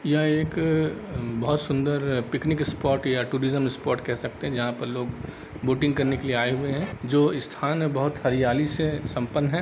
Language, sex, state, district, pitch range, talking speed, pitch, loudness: Hindi, male, Bihar, Sitamarhi, 125-150 Hz, 200 wpm, 140 Hz, -25 LUFS